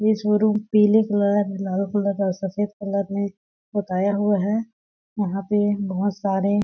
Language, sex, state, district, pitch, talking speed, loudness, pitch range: Hindi, female, Chhattisgarh, Balrampur, 205 Hz, 145 wpm, -22 LUFS, 195-210 Hz